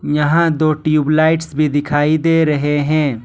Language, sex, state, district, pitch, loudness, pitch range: Hindi, male, Jharkhand, Ranchi, 155 Hz, -15 LUFS, 145-155 Hz